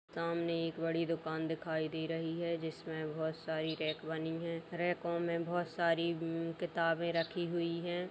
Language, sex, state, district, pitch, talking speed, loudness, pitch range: Hindi, female, Uttar Pradesh, Etah, 165 Hz, 185 wpm, -37 LUFS, 160-170 Hz